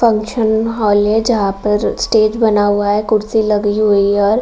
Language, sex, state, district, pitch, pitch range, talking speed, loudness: Hindi, female, Bihar, Saran, 215 Hz, 205-220 Hz, 205 wpm, -14 LUFS